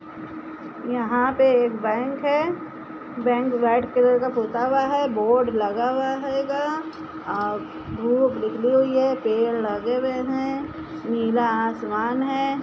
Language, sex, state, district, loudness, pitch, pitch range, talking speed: Hindi, female, Uttar Pradesh, Budaun, -22 LUFS, 255 Hz, 235-285 Hz, 135 wpm